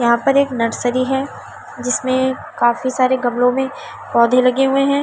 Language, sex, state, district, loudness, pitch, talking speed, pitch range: Hindi, female, Delhi, New Delhi, -17 LUFS, 255 Hz, 165 wpm, 245-270 Hz